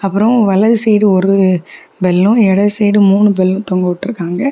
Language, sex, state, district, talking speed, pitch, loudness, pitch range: Tamil, female, Tamil Nadu, Kanyakumari, 160 wpm, 200 Hz, -12 LUFS, 185-210 Hz